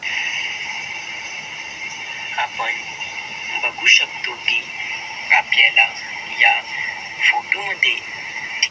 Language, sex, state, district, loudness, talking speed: Marathi, male, Maharashtra, Gondia, -18 LUFS, 55 wpm